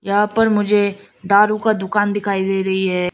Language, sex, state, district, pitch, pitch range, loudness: Hindi, female, Arunachal Pradesh, Lower Dibang Valley, 205 Hz, 190-210 Hz, -17 LUFS